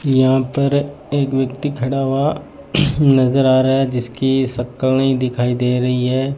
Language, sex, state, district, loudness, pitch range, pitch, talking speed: Hindi, male, Rajasthan, Bikaner, -17 LUFS, 130-140 Hz, 135 Hz, 160 wpm